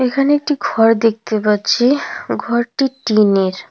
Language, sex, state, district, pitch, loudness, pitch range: Bengali, female, West Bengal, Cooch Behar, 235 Hz, -15 LUFS, 215-270 Hz